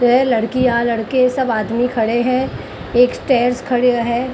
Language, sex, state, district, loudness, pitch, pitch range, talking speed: Hindi, female, Maharashtra, Mumbai Suburban, -16 LUFS, 245 Hz, 235-255 Hz, 150 wpm